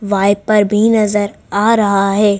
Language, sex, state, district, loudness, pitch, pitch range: Hindi, female, Madhya Pradesh, Bhopal, -13 LUFS, 205 Hz, 200-210 Hz